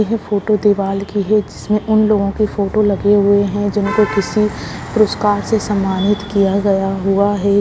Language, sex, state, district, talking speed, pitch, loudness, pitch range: Hindi, female, Bihar, Lakhisarai, 175 wpm, 205 Hz, -15 LUFS, 200-210 Hz